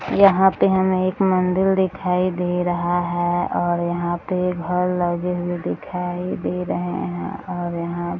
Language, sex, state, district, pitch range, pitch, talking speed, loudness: Hindi, female, Bihar, Gaya, 175-185 Hz, 180 Hz, 160 wpm, -21 LUFS